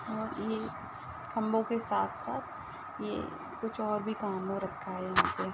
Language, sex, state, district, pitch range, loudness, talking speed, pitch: Hindi, female, Uttar Pradesh, Ghazipur, 210-230 Hz, -35 LUFS, 175 wpm, 220 Hz